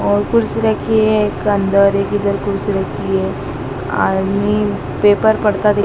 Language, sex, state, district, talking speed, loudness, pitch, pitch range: Hindi, female, Madhya Pradesh, Dhar, 155 wpm, -16 LUFS, 200 Hz, 195-210 Hz